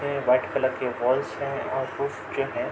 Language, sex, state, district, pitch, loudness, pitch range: Hindi, male, Uttar Pradesh, Budaun, 130 Hz, -26 LUFS, 125-140 Hz